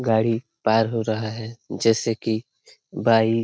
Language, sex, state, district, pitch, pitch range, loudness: Hindi, male, Bihar, Lakhisarai, 115 Hz, 110-115 Hz, -23 LUFS